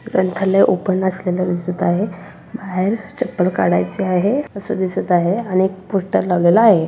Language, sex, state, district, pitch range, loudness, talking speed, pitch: Marathi, female, Maharashtra, Solapur, 180-200 Hz, -18 LUFS, 150 wpm, 185 Hz